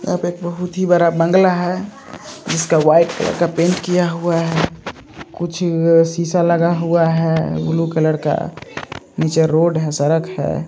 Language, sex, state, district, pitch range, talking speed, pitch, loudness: Hindi, male, Andhra Pradesh, Krishna, 165-175 Hz, 165 wpm, 170 Hz, -16 LUFS